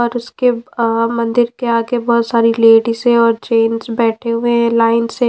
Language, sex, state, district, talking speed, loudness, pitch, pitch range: Hindi, female, Punjab, Pathankot, 180 wpm, -14 LUFS, 230 Hz, 230-240 Hz